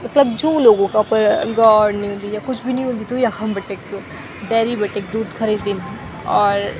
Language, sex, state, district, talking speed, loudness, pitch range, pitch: Garhwali, female, Uttarakhand, Tehri Garhwal, 205 wpm, -17 LUFS, 205-235 Hz, 215 Hz